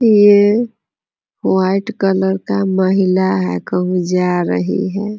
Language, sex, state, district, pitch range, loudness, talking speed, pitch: Hindi, female, Bihar, Muzaffarpur, 180-205 Hz, -15 LUFS, 115 wpm, 190 Hz